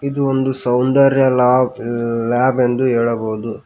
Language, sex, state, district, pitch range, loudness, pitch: Kannada, male, Karnataka, Koppal, 120-130 Hz, -16 LUFS, 125 Hz